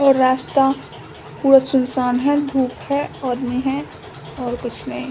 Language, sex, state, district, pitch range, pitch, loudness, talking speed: Hindi, female, Bihar, Samastipur, 250-275 Hz, 265 Hz, -19 LUFS, 140 wpm